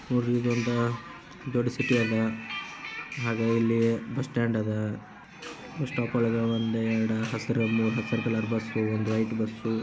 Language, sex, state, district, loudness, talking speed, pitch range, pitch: Kannada, male, Karnataka, Dharwad, -28 LUFS, 130 wpm, 110-120 Hz, 115 Hz